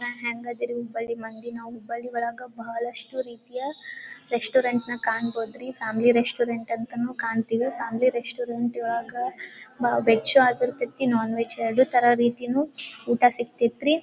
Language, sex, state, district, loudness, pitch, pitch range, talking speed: Kannada, female, Karnataka, Dharwad, -25 LUFS, 240 Hz, 230-250 Hz, 120 wpm